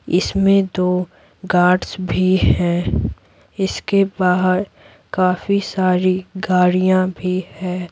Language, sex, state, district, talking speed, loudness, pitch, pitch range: Hindi, female, Bihar, Patna, 90 wpm, -18 LUFS, 185 Hz, 180-190 Hz